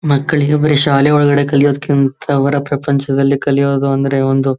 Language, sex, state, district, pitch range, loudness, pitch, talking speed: Kannada, male, Karnataka, Chamarajanagar, 135-145 Hz, -13 LUFS, 140 Hz, 130 wpm